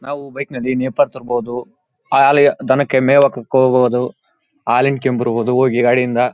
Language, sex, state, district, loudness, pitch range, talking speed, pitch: Kannada, male, Karnataka, Bellary, -15 LUFS, 125-140 Hz, 160 wpm, 130 Hz